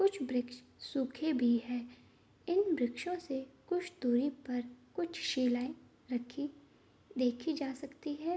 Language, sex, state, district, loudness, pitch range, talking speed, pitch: Hindi, female, Bihar, Bhagalpur, -36 LUFS, 245-325 Hz, 130 wpm, 270 Hz